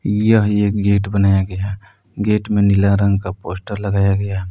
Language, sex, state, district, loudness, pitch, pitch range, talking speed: Hindi, male, Jharkhand, Palamu, -17 LUFS, 100 Hz, 100-105 Hz, 175 wpm